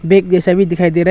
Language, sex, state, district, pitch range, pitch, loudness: Hindi, male, Arunachal Pradesh, Longding, 175-190 Hz, 185 Hz, -13 LUFS